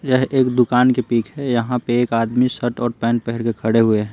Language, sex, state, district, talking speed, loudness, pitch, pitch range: Hindi, male, Bihar, Patna, 260 wpm, -18 LUFS, 120 Hz, 115-125 Hz